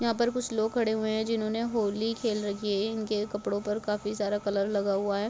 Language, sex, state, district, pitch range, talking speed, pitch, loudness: Hindi, male, Rajasthan, Churu, 205-225 Hz, 240 wpm, 215 Hz, -29 LUFS